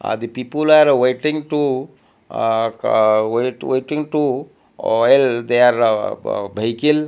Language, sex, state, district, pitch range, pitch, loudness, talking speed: English, male, Odisha, Malkangiri, 115-150 Hz, 125 Hz, -17 LUFS, 135 wpm